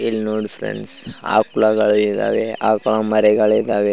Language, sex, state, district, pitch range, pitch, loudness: Kannada, male, Karnataka, Raichur, 105-110 Hz, 110 Hz, -17 LUFS